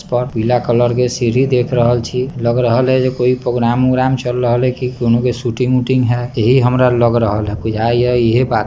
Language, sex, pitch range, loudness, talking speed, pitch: Bajjika, male, 120-125 Hz, -14 LUFS, 240 wpm, 125 Hz